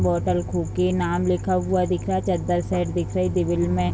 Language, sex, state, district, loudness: Hindi, female, Bihar, Bhagalpur, -23 LUFS